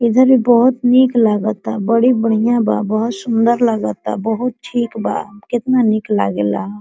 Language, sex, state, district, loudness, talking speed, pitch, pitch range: Hindi, female, Jharkhand, Sahebganj, -15 LUFS, 160 wpm, 230 Hz, 215-245 Hz